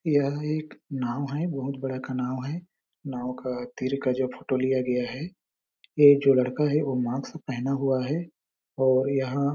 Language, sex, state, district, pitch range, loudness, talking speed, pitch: Hindi, male, Chhattisgarh, Balrampur, 130-145 Hz, -26 LUFS, 190 wpm, 135 Hz